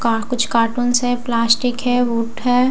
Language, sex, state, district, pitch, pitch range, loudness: Hindi, female, Bihar, Katihar, 245 Hz, 230-245 Hz, -18 LUFS